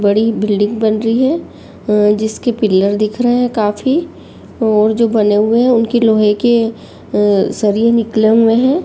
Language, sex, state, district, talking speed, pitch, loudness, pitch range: Hindi, female, Uttar Pradesh, Jyotiba Phule Nagar, 170 wpm, 220 Hz, -13 LUFS, 210-235 Hz